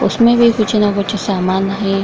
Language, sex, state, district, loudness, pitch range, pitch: Hindi, female, Bihar, Kishanganj, -14 LUFS, 195-220 Hz, 200 Hz